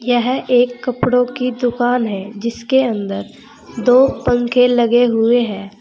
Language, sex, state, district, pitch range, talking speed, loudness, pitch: Hindi, female, Uttar Pradesh, Saharanpur, 230-250 Hz, 135 wpm, -16 LUFS, 245 Hz